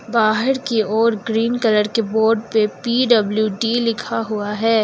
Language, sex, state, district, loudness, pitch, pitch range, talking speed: Hindi, female, Uttar Pradesh, Lucknow, -18 LUFS, 225 Hz, 215-230 Hz, 150 wpm